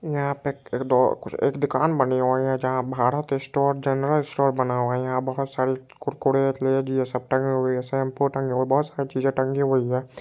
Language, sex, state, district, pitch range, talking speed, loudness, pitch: Hindi, male, Bihar, Purnia, 130-140 Hz, 210 wpm, -24 LUFS, 135 Hz